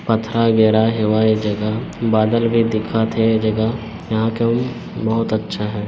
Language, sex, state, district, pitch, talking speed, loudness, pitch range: Hindi, male, Chhattisgarh, Bilaspur, 110 Hz, 165 wpm, -18 LUFS, 110-115 Hz